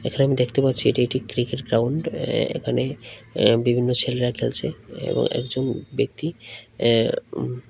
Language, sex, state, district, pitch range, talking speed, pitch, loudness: Bengali, male, Tripura, West Tripura, 120-130 Hz, 150 wpm, 125 Hz, -23 LUFS